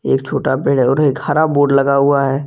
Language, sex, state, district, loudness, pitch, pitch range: Hindi, male, Jharkhand, Ranchi, -14 LUFS, 140 Hz, 135-145 Hz